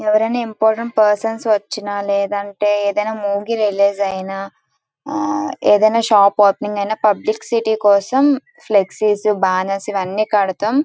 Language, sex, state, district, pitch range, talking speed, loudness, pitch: Telugu, female, Andhra Pradesh, Srikakulam, 200-225 Hz, 140 wpm, -17 LUFS, 210 Hz